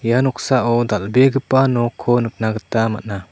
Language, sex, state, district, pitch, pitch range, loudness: Garo, male, Meghalaya, South Garo Hills, 120 Hz, 110-130 Hz, -17 LUFS